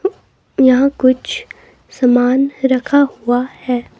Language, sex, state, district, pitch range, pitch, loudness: Hindi, female, Himachal Pradesh, Shimla, 250-280 Hz, 260 Hz, -15 LUFS